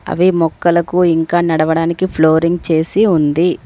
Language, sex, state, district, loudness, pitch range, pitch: Telugu, female, Telangana, Komaram Bheem, -14 LUFS, 160-175 Hz, 170 Hz